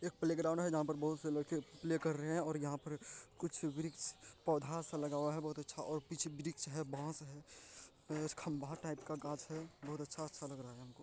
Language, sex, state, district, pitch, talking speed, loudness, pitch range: Hindi, male, Bihar, Madhepura, 155 Hz, 225 wpm, -42 LUFS, 150-160 Hz